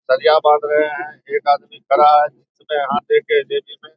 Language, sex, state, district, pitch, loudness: Hindi, male, Bihar, Saharsa, 155 Hz, -16 LUFS